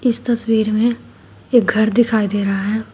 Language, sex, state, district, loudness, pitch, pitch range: Hindi, female, Uttar Pradesh, Shamli, -17 LUFS, 225 Hz, 215-240 Hz